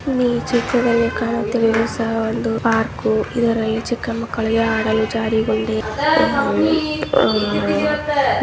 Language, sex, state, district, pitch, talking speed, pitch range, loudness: Kannada, female, Karnataka, Mysore, 225 Hz, 95 wpm, 220-240 Hz, -18 LUFS